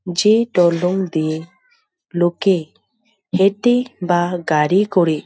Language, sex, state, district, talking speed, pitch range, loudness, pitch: Bengali, female, West Bengal, Dakshin Dinajpur, 90 wpm, 175-220 Hz, -17 LUFS, 180 Hz